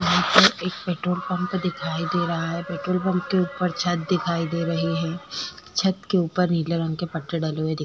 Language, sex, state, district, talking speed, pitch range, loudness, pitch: Hindi, female, Uttarakhand, Tehri Garhwal, 220 wpm, 170-180 Hz, -24 LUFS, 175 Hz